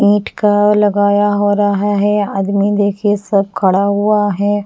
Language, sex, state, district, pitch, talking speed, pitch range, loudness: Hindi, female, Punjab, Pathankot, 205 Hz, 155 wpm, 200-205 Hz, -13 LUFS